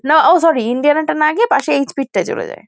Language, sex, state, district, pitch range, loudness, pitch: Bengali, female, West Bengal, Kolkata, 280-390 Hz, -14 LUFS, 310 Hz